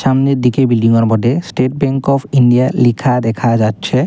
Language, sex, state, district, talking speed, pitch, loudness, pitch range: Bengali, male, Assam, Kamrup Metropolitan, 175 wpm, 125 Hz, -13 LUFS, 115-135 Hz